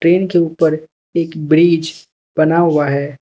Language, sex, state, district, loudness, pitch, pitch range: Hindi, male, Manipur, Imphal West, -15 LUFS, 160 Hz, 155-170 Hz